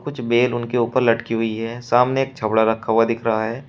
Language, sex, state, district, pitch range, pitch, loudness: Hindi, male, Uttar Pradesh, Shamli, 115-125 Hz, 115 Hz, -19 LUFS